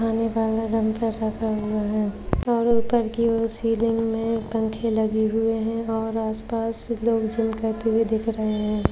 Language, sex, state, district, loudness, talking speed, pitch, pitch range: Hindi, female, Maharashtra, Chandrapur, -24 LUFS, 175 wpm, 225 Hz, 220-230 Hz